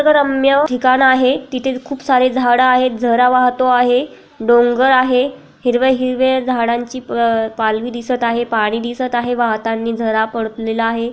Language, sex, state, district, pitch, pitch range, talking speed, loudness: Marathi, female, Maharashtra, Aurangabad, 250 Hz, 235-260 Hz, 140 wpm, -15 LUFS